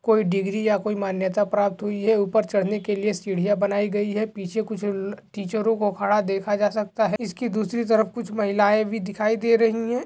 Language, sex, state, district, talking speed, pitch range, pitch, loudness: Hindi, male, Jharkhand, Jamtara, 220 wpm, 200-220 Hz, 210 Hz, -23 LUFS